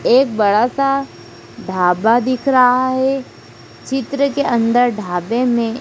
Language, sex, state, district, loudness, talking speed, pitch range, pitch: Hindi, female, Madhya Pradesh, Dhar, -16 LUFS, 125 wpm, 225-265 Hz, 245 Hz